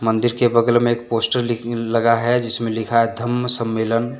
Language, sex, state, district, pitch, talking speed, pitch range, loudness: Hindi, male, Jharkhand, Deoghar, 115 Hz, 185 wpm, 115-120 Hz, -18 LUFS